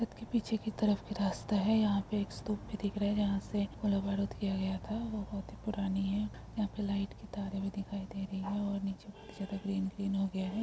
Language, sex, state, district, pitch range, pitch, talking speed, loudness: Hindi, female, Bihar, Jamui, 195-210 Hz, 200 Hz, 270 wpm, -35 LUFS